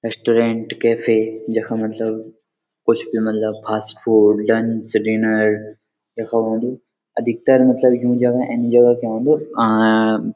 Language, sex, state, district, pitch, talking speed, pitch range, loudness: Garhwali, male, Uttarakhand, Uttarkashi, 115 Hz, 125 wpm, 110-120 Hz, -17 LUFS